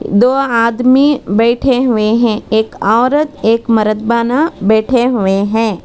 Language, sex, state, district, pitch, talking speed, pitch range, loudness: Hindi, female, Karnataka, Bangalore, 230 Hz, 125 wpm, 220-255 Hz, -12 LUFS